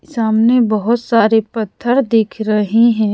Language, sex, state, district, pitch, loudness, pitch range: Hindi, female, Odisha, Khordha, 225 Hz, -14 LUFS, 215-235 Hz